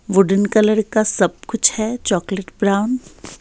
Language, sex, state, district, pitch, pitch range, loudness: Hindi, female, Bihar, Patna, 205 Hz, 195-220 Hz, -17 LUFS